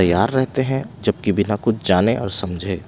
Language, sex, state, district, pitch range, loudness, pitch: Hindi, male, Punjab, Pathankot, 95-120 Hz, -20 LUFS, 105 Hz